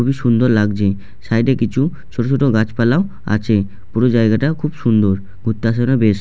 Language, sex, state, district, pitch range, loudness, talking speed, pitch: Bengali, male, West Bengal, Jalpaiguri, 105-130 Hz, -16 LUFS, 205 wpm, 115 Hz